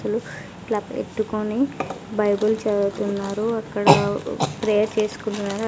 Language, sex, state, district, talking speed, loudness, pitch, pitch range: Telugu, female, Andhra Pradesh, Sri Satya Sai, 85 wpm, -23 LUFS, 215 Hz, 205-220 Hz